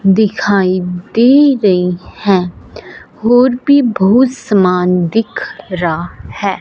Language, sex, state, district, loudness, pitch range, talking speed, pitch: Hindi, female, Punjab, Fazilka, -12 LUFS, 180-240 Hz, 100 wpm, 195 Hz